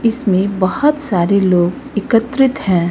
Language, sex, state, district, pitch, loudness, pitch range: Hindi, female, Uttar Pradesh, Lucknow, 200 Hz, -15 LUFS, 185-260 Hz